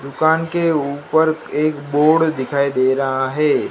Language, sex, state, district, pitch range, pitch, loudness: Hindi, male, Gujarat, Gandhinagar, 140-160 Hz, 150 Hz, -17 LUFS